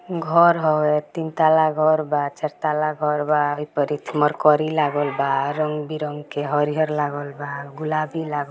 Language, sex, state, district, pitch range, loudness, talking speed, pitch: Bhojpuri, female, Bihar, Gopalganj, 145-155 Hz, -21 LUFS, 170 wpm, 150 Hz